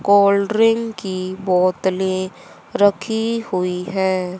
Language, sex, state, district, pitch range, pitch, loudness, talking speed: Hindi, female, Haryana, Rohtak, 185-210 Hz, 190 Hz, -19 LUFS, 95 wpm